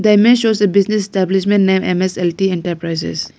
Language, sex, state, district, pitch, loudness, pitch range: English, female, Arunachal Pradesh, Lower Dibang Valley, 190 Hz, -15 LUFS, 175-205 Hz